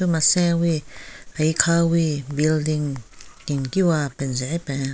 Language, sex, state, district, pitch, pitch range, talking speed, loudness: Rengma, female, Nagaland, Kohima, 155 Hz, 140-170 Hz, 85 wpm, -21 LUFS